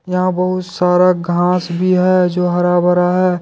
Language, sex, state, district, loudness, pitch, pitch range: Hindi, male, Jharkhand, Deoghar, -14 LUFS, 180 Hz, 175-185 Hz